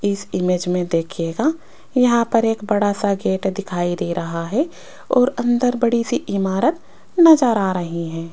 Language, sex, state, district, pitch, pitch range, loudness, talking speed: Hindi, female, Rajasthan, Jaipur, 205 Hz, 180-245 Hz, -19 LUFS, 165 wpm